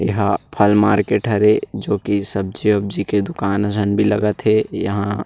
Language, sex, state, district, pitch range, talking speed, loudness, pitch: Chhattisgarhi, male, Chhattisgarh, Rajnandgaon, 100-105 Hz, 170 wpm, -18 LUFS, 105 Hz